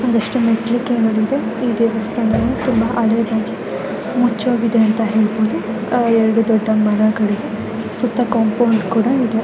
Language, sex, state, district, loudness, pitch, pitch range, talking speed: Kannada, female, Karnataka, Mysore, -17 LUFS, 225 Hz, 220-240 Hz, 95 wpm